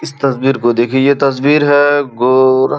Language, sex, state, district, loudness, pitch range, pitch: Hindi, male, Uttar Pradesh, Gorakhpur, -12 LUFS, 130-145 Hz, 135 Hz